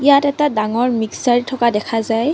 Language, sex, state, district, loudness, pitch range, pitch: Assamese, female, Assam, Kamrup Metropolitan, -17 LUFS, 225-280 Hz, 245 Hz